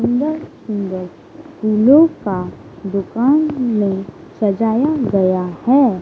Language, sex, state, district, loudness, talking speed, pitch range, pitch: Hindi, male, Bihar, Kaimur, -17 LUFS, 80 wpm, 195-260 Hz, 215 Hz